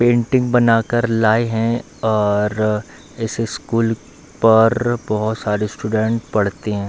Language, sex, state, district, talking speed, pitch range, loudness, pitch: Hindi, male, Bihar, Darbhanga, 120 wpm, 105-115 Hz, -18 LUFS, 110 Hz